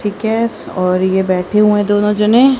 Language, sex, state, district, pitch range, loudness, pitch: Hindi, female, Haryana, Rohtak, 190-220 Hz, -14 LUFS, 210 Hz